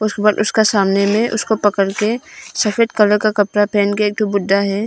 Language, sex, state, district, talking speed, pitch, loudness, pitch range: Hindi, female, Arunachal Pradesh, Longding, 160 wpm, 210 Hz, -16 LUFS, 200-215 Hz